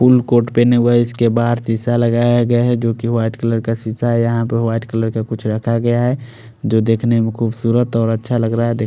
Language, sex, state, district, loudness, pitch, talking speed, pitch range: Hindi, male, Odisha, Khordha, -16 LUFS, 115 Hz, 250 wpm, 115-120 Hz